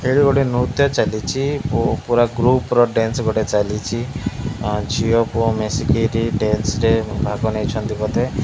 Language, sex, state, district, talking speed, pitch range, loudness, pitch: Odia, male, Odisha, Malkangiri, 135 wpm, 110-125 Hz, -19 LUFS, 115 Hz